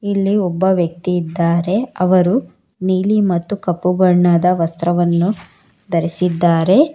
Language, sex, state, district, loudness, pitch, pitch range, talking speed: Kannada, female, Karnataka, Bangalore, -16 LUFS, 180 Hz, 170-195 Hz, 95 wpm